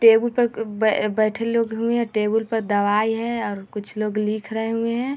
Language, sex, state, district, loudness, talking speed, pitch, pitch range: Hindi, female, Bihar, Vaishali, -22 LUFS, 210 wpm, 220 Hz, 215-230 Hz